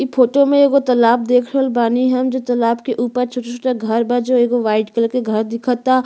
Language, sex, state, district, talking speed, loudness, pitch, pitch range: Bhojpuri, female, Uttar Pradesh, Gorakhpur, 220 wpm, -16 LUFS, 245 Hz, 235-255 Hz